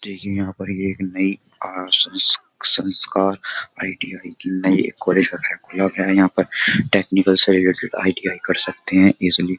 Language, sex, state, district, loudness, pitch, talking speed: Hindi, male, Uttar Pradesh, Jyotiba Phule Nagar, -17 LUFS, 95 Hz, 170 wpm